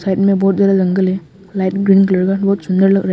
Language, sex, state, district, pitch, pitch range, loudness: Hindi, male, Arunachal Pradesh, Longding, 195 Hz, 185-195 Hz, -14 LUFS